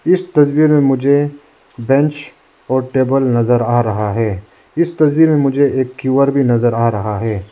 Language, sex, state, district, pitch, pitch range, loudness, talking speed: Hindi, male, Arunachal Pradesh, Lower Dibang Valley, 135 Hz, 120-145 Hz, -14 LUFS, 185 wpm